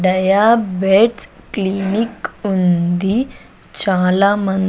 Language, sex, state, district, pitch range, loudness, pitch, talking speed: Telugu, female, Andhra Pradesh, Sri Satya Sai, 185-210 Hz, -16 LUFS, 195 Hz, 75 wpm